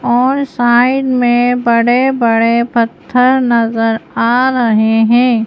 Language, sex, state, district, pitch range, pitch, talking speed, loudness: Hindi, female, Madhya Pradesh, Bhopal, 230-250 Hz, 240 Hz, 100 wpm, -12 LUFS